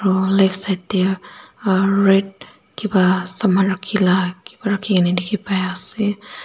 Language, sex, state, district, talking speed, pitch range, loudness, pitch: Nagamese, female, Nagaland, Dimapur, 100 wpm, 185-205 Hz, -18 LUFS, 195 Hz